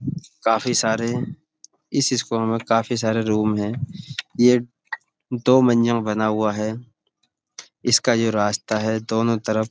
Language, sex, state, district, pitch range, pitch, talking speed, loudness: Hindi, male, Uttar Pradesh, Budaun, 110-125 Hz, 115 Hz, 140 wpm, -21 LUFS